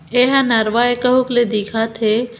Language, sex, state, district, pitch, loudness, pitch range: Hindi, female, Chhattisgarh, Bilaspur, 240 Hz, -15 LUFS, 225-250 Hz